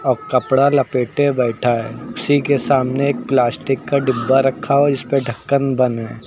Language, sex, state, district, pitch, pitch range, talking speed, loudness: Hindi, male, Uttar Pradesh, Lucknow, 135 Hz, 120-140 Hz, 180 wpm, -17 LUFS